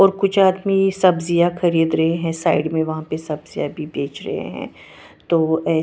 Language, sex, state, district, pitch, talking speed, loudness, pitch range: Hindi, female, Bihar, Patna, 165 Hz, 185 wpm, -19 LUFS, 160-185 Hz